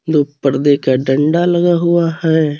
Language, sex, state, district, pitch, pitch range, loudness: Hindi, male, Jharkhand, Garhwa, 155 Hz, 145-170 Hz, -14 LUFS